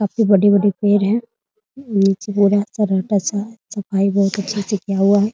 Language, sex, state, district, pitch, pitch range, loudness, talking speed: Hindi, female, Bihar, Muzaffarpur, 205 Hz, 200-210 Hz, -17 LUFS, 145 wpm